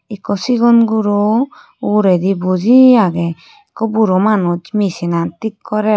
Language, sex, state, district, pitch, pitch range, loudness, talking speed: Chakma, female, Tripura, Unakoti, 210 Hz, 185-230 Hz, -14 LUFS, 130 wpm